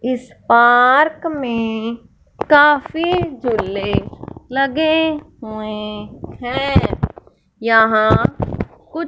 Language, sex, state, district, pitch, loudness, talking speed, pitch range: Hindi, male, Punjab, Fazilka, 250 Hz, -16 LUFS, 65 wpm, 225-300 Hz